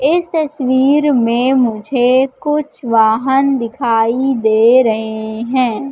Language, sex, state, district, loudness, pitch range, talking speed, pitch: Hindi, female, Madhya Pradesh, Katni, -14 LUFS, 230-275 Hz, 100 wpm, 255 Hz